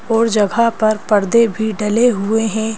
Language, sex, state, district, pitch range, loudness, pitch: Hindi, female, Madhya Pradesh, Bhopal, 215-230 Hz, -15 LUFS, 220 Hz